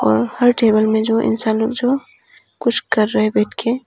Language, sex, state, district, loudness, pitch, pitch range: Hindi, female, Arunachal Pradesh, Papum Pare, -17 LUFS, 225 Hz, 215-240 Hz